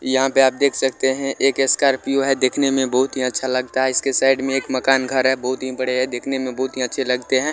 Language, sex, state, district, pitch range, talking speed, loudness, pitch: Maithili, male, Bihar, Vaishali, 130-135 Hz, 270 wpm, -19 LUFS, 130 Hz